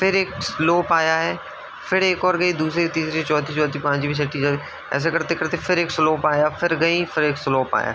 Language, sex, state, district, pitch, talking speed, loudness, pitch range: Hindi, male, Uttar Pradesh, Ghazipur, 160 Hz, 205 wpm, -20 LUFS, 150-170 Hz